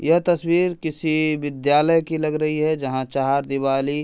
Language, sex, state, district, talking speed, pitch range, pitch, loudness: Hindi, male, Uttar Pradesh, Hamirpur, 165 wpm, 140-160 Hz, 155 Hz, -21 LUFS